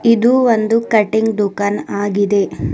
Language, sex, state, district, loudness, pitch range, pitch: Kannada, female, Karnataka, Bidar, -15 LUFS, 205-230 Hz, 215 Hz